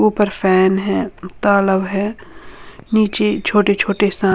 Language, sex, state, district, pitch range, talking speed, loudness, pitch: Hindi, female, Uttar Pradesh, Lalitpur, 190-210 Hz, 140 wpm, -16 LUFS, 200 Hz